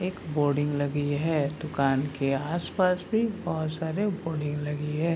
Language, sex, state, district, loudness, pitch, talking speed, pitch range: Hindi, male, Bihar, Kishanganj, -28 LUFS, 155 Hz, 150 wpm, 145-170 Hz